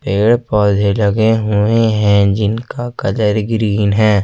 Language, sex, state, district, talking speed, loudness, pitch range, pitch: Hindi, male, Jharkhand, Ranchi, 125 wpm, -14 LUFS, 100-110 Hz, 105 Hz